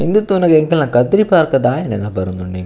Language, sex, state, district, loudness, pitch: Tulu, male, Karnataka, Dakshina Kannada, -14 LUFS, 135 Hz